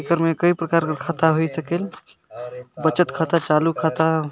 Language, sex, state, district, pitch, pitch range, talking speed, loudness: Sadri, male, Chhattisgarh, Jashpur, 160 Hz, 155-165 Hz, 180 wpm, -20 LUFS